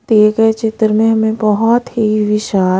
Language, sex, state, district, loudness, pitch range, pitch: Hindi, female, Haryana, Rohtak, -13 LUFS, 210-225 Hz, 220 Hz